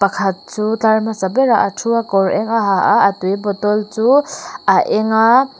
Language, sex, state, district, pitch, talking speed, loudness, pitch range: Mizo, female, Mizoram, Aizawl, 215 Hz, 215 wpm, -15 LUFS, 200-230 Hz